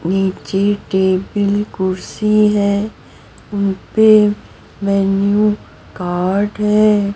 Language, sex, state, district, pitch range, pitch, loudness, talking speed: Hindi, female, Maharashtra, Mumbai Suburban, 190-210 Hz, 200 Hz, -15 LUFS, 75 wpm